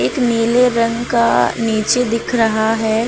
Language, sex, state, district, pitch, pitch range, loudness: Hindi, female, Uttar Pradesh, Lucknow, 230 Hz, 225-240 Hz, -15 LUFS